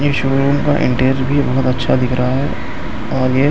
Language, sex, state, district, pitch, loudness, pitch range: Hindi, male, Maharashtra, Mumbai Suburban, 135 Hz, -16 LUFS, 130-140 Hz